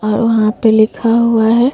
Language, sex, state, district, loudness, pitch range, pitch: Hindi, female, Bihar, Vaishali, -12 LUFS, 220-230 Hz, 225 Hz